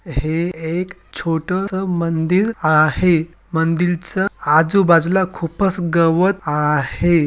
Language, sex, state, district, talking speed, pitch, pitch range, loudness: Marathi, male, Maharashtra, Sindhudurg, 80 wpm, 170 Hz, 160-185 Hz, -17 LUFS